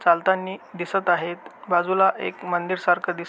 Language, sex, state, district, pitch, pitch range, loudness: Marathi, male, Maharashtra, Aurangabad, 180 Hz, 175-190 Hz, -23 LUFS